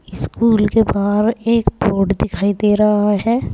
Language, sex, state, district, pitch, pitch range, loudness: Hindi, female, Uttar Pradesh, Saharanpur, 210 Hz, 205-225 Hz, -16 LUFS